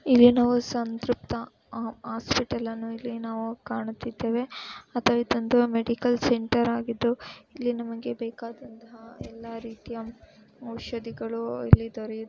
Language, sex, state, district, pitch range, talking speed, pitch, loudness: Kannada, female, Karnataka, Dharwad, 225-240 Hz, 100 wpm, 230 Hz, -27 LUFS